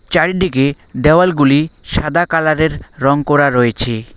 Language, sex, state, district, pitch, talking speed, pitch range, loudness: Bengali, male, West Bengal, Alipurduar, 145 Hz, 100 wpm, 135-165 Hz, -14 LUFS